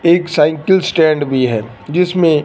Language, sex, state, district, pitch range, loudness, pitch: Hindi, male, Punjab, Fazilka, 145-175 Hz, -14 LUFS, 155 Hz